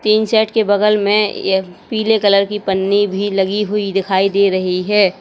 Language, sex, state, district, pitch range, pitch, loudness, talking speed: Hindi, female, Uttar Pradesh, Lalitpur, 195-210 Hz, 200 Hz, -15 LUFS, 195 wpm